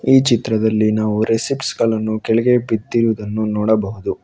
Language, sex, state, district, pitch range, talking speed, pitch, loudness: Kannada, male, Karnataka, Bangalore, 110-120 Hz, 115 wpm, 110 Hz, -17 LUFS